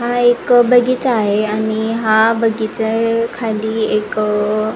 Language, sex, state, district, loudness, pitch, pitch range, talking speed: Marathi, female, Maharashtra, Nagpur, -15 LUFS, 220 Hz, 215-235 Hz, 140 wpm